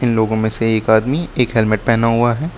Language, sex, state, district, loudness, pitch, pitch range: Hindi, male, Uttar Pradesh, Lucknow, -16 LUFS, 115 Hz, 110-125 Hz